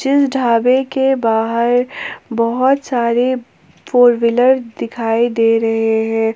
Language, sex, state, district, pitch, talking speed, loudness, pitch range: Hindi, female, Jharkhand, Palamu, 240 Hz, 115 wpm, -15 LUFS, 230-260 Hz